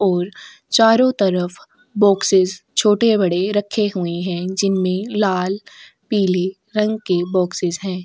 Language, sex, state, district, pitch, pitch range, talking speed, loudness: Hindi, female, Uttar Pradesh, Etah, 195 Hz, 180-210 Hz, 110 wpm, -18 LUFS